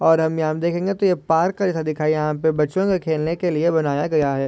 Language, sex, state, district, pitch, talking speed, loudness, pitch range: Hindi, male, Maharashtra, Solapur, 160 Hz, 255 wpm, -20 LUFS, 155-175 Hz